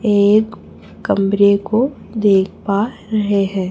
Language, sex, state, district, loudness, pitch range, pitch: Hindi, female, Chhattisgarh, Raipur, -16 LUFS, 200-215 Hz, 205 Hz